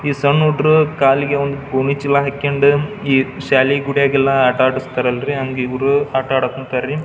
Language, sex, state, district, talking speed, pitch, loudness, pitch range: Kannada, male, Karnataka, Belgaum, 155 wpm, 140 Hz, -16 LUFS, 130-140 Hz